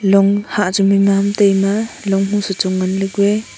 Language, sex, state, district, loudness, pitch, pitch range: Wancho, female, Arunachal Pradesh, Longding, -15 LUFS, 195 Hz, 195-205 Hz